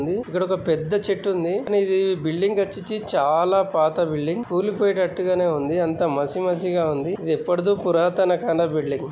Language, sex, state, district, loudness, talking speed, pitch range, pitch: Telugu, female, Telangana, Nalgonda, -22 LUFS, 170 wpm, 160-190 Hz, 180 Hz